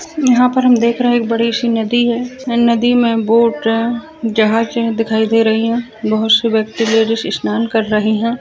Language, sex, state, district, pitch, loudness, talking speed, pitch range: Hindi, female, Bihar, Jahanabad, 230 Hz, -14 LUFS, 220 wpm, 225-240 Hz